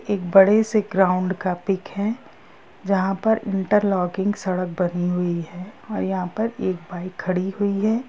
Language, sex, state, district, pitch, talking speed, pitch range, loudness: Hindi, female, Bihar, Gopalganj, 190 Hz, 170 wpm, 180-210 Hz, -22 LUFS